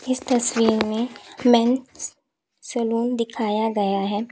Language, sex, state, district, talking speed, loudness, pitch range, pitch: Hindi, female, Uttar Pradesh, Lalitpur, 110 wpm, -22 LUFS, 220-250 Hz, 230 Hz